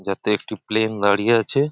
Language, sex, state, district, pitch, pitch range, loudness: Bengali, male, West Bengal, Purulia, 110 Hz, 100-115 Hz, -20 LUFS